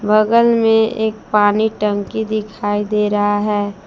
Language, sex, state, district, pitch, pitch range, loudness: Hindi, female, Jharkhand, Palamu, 210 Hz, 205-220 Hz, -16 LUFS